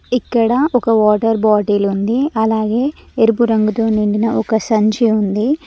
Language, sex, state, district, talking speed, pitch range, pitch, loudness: Telugu, female, Telangana, Mahabubabad, 125 wpm, 215-235 Hz, 220 Hz, -15 LUFS